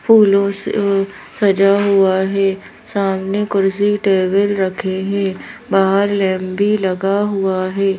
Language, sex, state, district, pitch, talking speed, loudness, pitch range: Hindi, female, Madhya Pradesh, Bhopal, 195 Hz, 130 wpm, -16 LUFS, 190-200 Hz